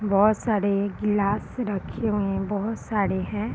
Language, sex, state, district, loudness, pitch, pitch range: Hindi, female, Bihar, Purnia, -25 LUFS, 205 Hz, 200-215 Hz